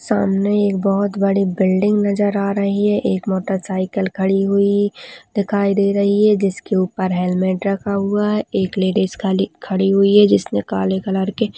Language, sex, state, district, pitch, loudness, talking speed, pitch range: Hindi, female, West Bengal, Dakshin Dinajpur, 195 Hz, -17 LUFS, 170 wpm, 190-205 Hz